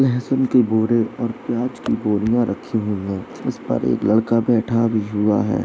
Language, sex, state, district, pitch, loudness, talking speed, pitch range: Hindi, male, Uttar Pradesh, Jalaun, 115 Hz, -20 LUFS, 190 wpm, 105-120 Hz